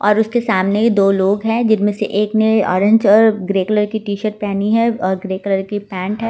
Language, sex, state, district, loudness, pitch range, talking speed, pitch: Hindi, female, Delhi, New Delhi, -16 LUFS, 195-220 Hz, 230 wpm, 210 Hz